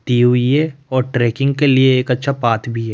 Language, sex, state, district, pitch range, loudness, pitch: Hindi, male, Rajasthan, Jaipur, 120-140 Hz, -15 LUFS, 125 Hz